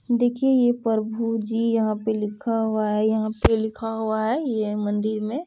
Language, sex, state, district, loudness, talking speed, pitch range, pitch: Maithili, female, Bihar, Saharsa, -23 LUFS, 185 wpm, 215-230 Hz, 220 Hz